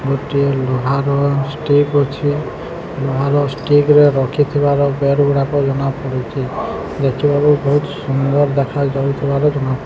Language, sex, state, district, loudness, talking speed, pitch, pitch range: Odia, male, Odisha, Sambalpur, -16 LUFS, 95 wpm, 140 Hz, 135-145 Hz